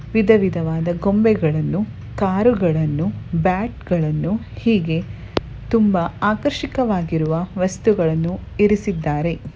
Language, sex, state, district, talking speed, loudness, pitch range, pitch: Kannada, female, Karnataka, Bellary, 55 wpm, -19 LUFS, 165-210 Hz, 185 Hz